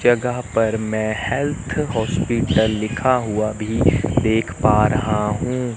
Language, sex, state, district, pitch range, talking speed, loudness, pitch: Hindi, male, Chandigarh, Chandigarh, 110-125 Hz, 125 wpm, -20 LUFS, 110 Hz